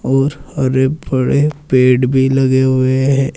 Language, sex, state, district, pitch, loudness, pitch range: Hindi, male, Uttar Pradesh, Saharanpur, 130 Hz, -14 LUFS, 130-135 Hz